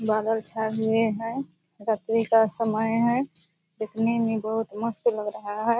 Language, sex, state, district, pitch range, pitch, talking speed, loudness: Hindi, female, Bihar, Purnia, 215-230 Hz, 220 Hz, 155 wpm, -23 LUFS